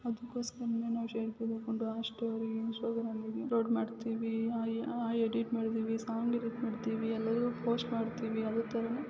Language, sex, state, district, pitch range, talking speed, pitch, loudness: Kannada, female, Karnataka, Chamarajanagar, 225-235 Hz, 125 wpm, 230 Hz, -36 LUFS